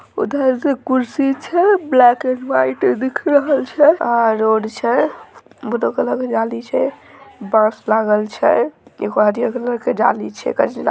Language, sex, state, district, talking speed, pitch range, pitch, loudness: Maithili, female, Bihar, Samastipur, 90 wpm, 220-270 Hz, 245 Hz, -17 LUFS